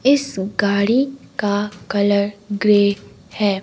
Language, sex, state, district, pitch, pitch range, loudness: Hindi, female, Himachal Pradesh, Shimla, 205 Hz, 200-215 Hz, -19 LUFS